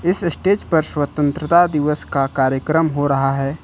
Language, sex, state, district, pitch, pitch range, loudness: Hindi, male, Jharkhand, Ranchi, 150 Hz, 140-170 Hz, -18 LUFS